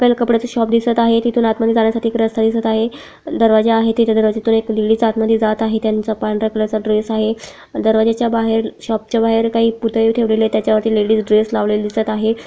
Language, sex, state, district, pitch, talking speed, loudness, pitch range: Marathi, female, Maharashtra, Chandrapur, 225 Hz, 215 wpm, -16 LUFS, 220-230 Hz